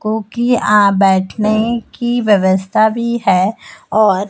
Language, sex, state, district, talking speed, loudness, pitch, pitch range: Hindi, male, Madhya Pradesh, Dhar, 110 wpm, -14 LUFS, 215 Hz, 195-230 Hz